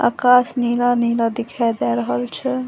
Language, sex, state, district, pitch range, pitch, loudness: Maithili, female, Bihar, Saharsa, 230-250 Hz, 235 Hz, -18 LUFS